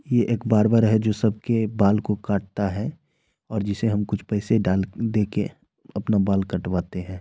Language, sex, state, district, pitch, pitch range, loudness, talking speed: Hindi, male, Bihar, Madhepura, 105 Hz, 100-110 Hz, -23 LUFS, 175 wpm